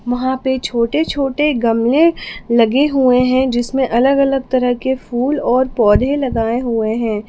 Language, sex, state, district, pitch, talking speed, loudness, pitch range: Hindi, female, Jharkhand, Palamu, 255 Hz, 155 wpm, -15 LUFS, 235-270 Hz